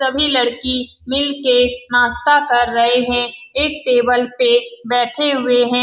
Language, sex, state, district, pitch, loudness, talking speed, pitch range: Hindi, female, Bihar, Saran, 250 Hz, -15 LUFS, 155 wpm, 245-280 Hz